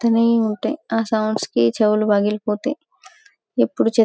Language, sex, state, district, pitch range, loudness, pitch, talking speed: Telugu, female, Telangana, Karimnagar, 210-250 Hz, -19 LUFS, 225 Hz, 150 wpm